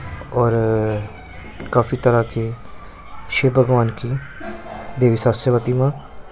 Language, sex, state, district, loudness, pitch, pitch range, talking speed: Hindi, male, Punjab, Pathankot, -19 LUFS, 120 Hz, 110-125 Hz, 95 wpm